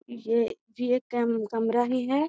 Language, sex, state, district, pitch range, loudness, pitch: Magahi, female, Bihar, Gaya, 230-250 Hz, -27 LUFS, 240 Hz